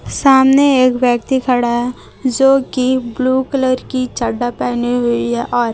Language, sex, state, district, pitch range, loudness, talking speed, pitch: Hindi, female, Chhattisgarh, Raipur, 240-260 Hz, -15 LUFS, 145 wpm, 255 Hz